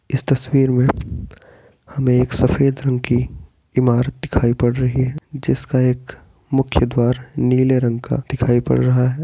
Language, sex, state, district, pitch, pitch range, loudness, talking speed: Hindi, male, Bihar, Bhagalpur, 125 Hz, 125-135 Hz, -18 LUFS, 155 wpm